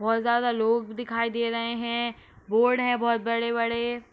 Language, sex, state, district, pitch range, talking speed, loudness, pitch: Hindi, female, Uttar Pradesh, Hamirpur, 230-235 Hz, 160 wpm, -26 LUFS, 235 Hz